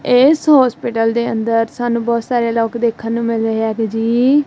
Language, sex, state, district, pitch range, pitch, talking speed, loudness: Punjabi, female, Punjab, Kapurthala, 225-245 Hz, 235 Hz, 190 wpm, -15 LUFS